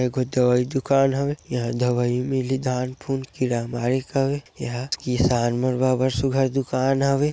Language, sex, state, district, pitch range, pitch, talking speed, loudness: Chhattisgarhi, male, Chhattisgarh, Sarguja, 125-135 Hz, 130 Hz, 170 wpm, -23 LUFS